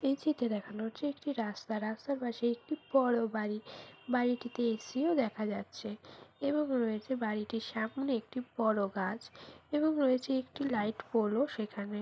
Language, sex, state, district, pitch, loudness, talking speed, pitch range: Bengali, female, West Bengal, Malda, 235 Hz, -34 LUFS, 155 wpm, 215-270 Hz